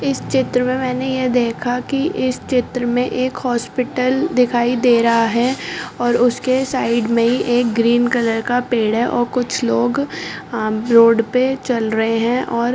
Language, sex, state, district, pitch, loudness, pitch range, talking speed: Hindi, female, Delhi, New Delhi, 245 Hz, -17 LUFS, 235-255 Hz, 165 wpm